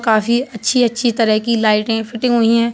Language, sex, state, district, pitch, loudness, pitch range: Hindi, male, Uttar Pradesh, Budaun, 230 Hz, -15 LUFS, 225-240 Hz